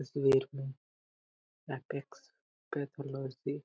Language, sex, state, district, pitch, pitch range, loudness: Hindi, male, Chhattisgarh, Korba, 135 Hz, 135-140 Hz, -36 LUFS